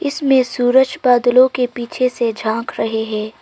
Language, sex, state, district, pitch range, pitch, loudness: Hindi, female, Arunachal Pradesh, Longding, 230-260 Hz, 245 Hz, -16 LUFS